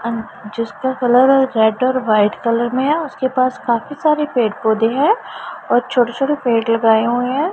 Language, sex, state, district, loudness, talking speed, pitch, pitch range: Hindi, female, Punjab, Pathankot, -16 LUFS, 185 wpm, 245 Hz, 230-270 Hz